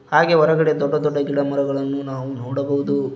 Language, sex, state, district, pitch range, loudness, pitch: Kannada, male, Karnataka, Koppal, 135-150 Hz, -20 LUFS, 140 Hz